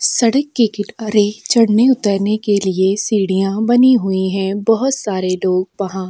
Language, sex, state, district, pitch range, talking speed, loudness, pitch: Hindi, female, Uttarakhand, Tehri Garhwal, 190-230 Hz, 145 wpm, -15 LUFS, 205 Hz